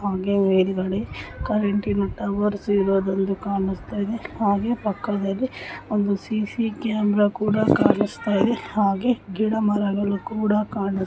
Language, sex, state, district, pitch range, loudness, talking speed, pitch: Kannada, female, Karnataka, Mysore, 195-215 Hz, -23 LUFS, 105 wpm, 205 Hz